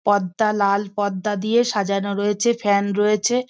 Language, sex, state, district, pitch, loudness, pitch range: Bengali, female, West Bengal, Kolkata, 205 Hz, -20 LUFS, 200-215 Hz